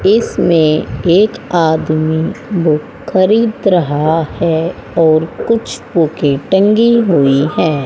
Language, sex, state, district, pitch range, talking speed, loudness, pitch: Hindi, female, Haryana, Rohtak, 155-195 Hz, 100 wpm, -13 LUFS, 165 Hz